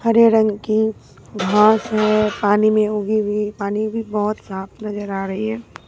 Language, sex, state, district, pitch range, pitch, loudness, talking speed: Hindi, female, Bihar, Katihar, 205-215 Hz, 215 Hz, -18 LUFS, 175 wpm